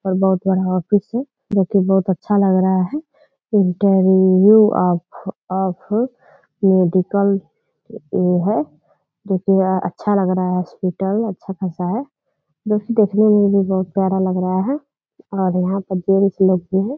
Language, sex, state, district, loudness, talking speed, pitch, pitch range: Hindi, female, Bihar, Purnia, -17 LUFS, 160 wpm, 190 Hz, 185-205 Hz